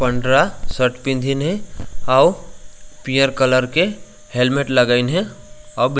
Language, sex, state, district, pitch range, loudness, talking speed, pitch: Chhattisgarhi, male, Chhattisgarh, Raigarh, 125-135 Hz, -17 LUFS, 130 wpm, 130 Hz